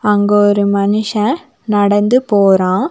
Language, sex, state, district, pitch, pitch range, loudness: Tamil, female, Tamil Nadu, Nilgiris, 205 Hz, 200-215 Hz, -13 LUFS